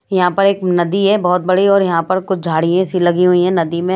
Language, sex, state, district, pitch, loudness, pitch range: Hindi, female, Maharashtra, Washim, 180 Hz, -14 LUFS, 175-190 Hz